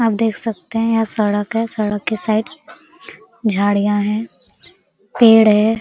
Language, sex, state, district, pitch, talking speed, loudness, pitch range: Hindi, female, Jharkhand, Sahebganj, 220 Hz, 145 wpm, -16 LUFS, 210-225 Hz